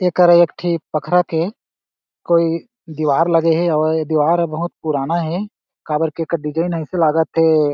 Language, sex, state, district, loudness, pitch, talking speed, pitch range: Chhattisgarhi, male, Chhattisgarh, Jashpur, -17 LUFS, 165 Hz, 180 wpm, 155-170 Hz